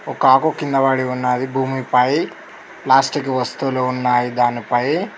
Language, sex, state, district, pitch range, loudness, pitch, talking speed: Telugu, male, Telangana, Mahabubabad, 125-135 Hz, -18 LUFS, 130 Hz, 115 wpm